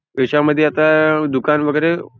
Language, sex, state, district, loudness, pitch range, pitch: Marathi, male, Maharashtra, Nagpur, -15 LUFS, 150-155 Hz, 150 Hz